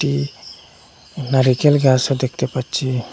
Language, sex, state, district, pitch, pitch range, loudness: Bengali, male, Assam, Hailakandi, 130 Hz, 125-135 Hz, -18 LUFS